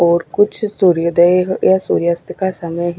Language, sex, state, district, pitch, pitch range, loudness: Hindi, female, Chhattisgarh, Raipur, 175 Hz, 170-190 Hz, -15 LUFS